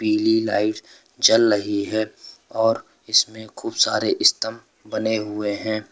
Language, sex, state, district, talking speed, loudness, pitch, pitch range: Hindi, male, Uttar Pradesh, Lucknow, 130 wpm, -21 LUFS, 110 Hz, 105-110 Hz